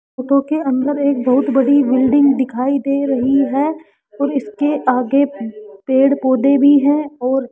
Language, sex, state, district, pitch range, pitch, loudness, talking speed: Hindi, female, Rajasthan, Jaipur, 260-280 Hz, 275 Hz, -15 LUFS, 160 wpm